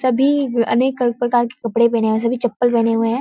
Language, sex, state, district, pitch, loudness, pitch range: Hindi, female, Bihar, Kishanganj, 240 Hz, -17 LUFS, 230-250 Hz